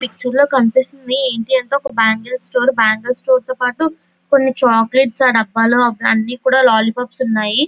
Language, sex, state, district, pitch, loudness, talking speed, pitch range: Telugu, female, Andhra Pradesh, Visakhapatnam, 255 Hz, -15 LUFS, 170 wpm, 230-265 Hz